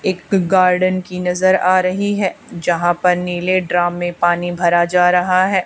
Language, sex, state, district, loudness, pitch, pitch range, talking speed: Hindi, female, Haryana, Charkhi Dadri, -16 LUFS, 180 Hz, 175-185 Hz, 180 wpm